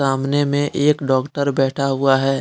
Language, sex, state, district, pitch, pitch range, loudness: Hindi, male, Jharkhand, Deoghar, 135 Hz, 135-145 Hz, -18 LUFS